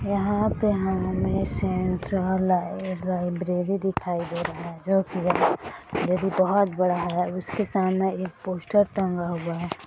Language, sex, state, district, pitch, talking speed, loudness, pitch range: Hindi, female, Bihar, Darbhanga, 185 Hz, 135 wpm, -25 LUFS, 175-190 Hz